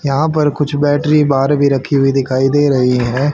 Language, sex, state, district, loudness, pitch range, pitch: Hindi, male, Haryana, Rohtak, -13 LUFS, 135-145 Hz, 140 Hz